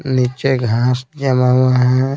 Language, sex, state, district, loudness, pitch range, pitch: Hindi, male, Bihar, Patna, -15 LUFS, 125-130 Hz, 130 Hz